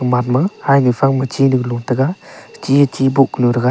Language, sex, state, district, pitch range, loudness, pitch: Wancho, male, Arunachal Pradesh, Longding, 125-135 Hz, -15 LUFS, 130 Hz